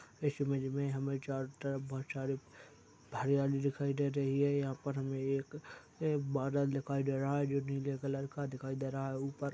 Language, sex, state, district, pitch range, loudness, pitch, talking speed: Hindi, male, Chhattisgarh, Balrampur, 135-140 Hz, -37 LUFS, 140 Hz, 195 wpm